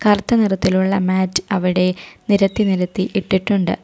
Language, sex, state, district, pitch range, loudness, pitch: Malayalam, female, Kerala, Kollam, 185-200 Hz, -17 LUFS, 190 Hz